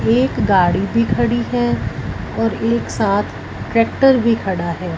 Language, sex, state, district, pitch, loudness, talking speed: Hindi, female, Punjab, Fazilka, 170 Hz, -17 LUFS, 145 wpm